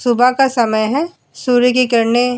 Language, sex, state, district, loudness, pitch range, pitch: Hindi, female, Uttar Pradesh, Muzaffarnagar, -14 LUFS, 235-255 Hz, 245 Hz